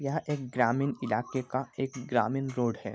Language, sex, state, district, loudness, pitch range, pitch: Hindi, male, Bihar, Gopalganj, -31 LUFS, 120-135 Hz, 130 Hz